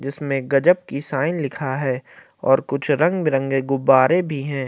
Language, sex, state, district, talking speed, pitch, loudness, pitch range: Hindi, male, Uttar Pradesh, Jalaun, 165 wpm, 140 Hz, -20 LUFS, 135-150 Hz